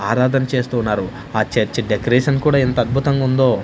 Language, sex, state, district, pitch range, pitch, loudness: Telugu, male, Andhra Pradesh, Manyam, 120-135 Hz, 125 Hz, -18 LUFS